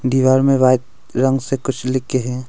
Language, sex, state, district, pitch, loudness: Hindi, male, Arunachal Pradesh, Longding, 130 Hz, -17 LUFS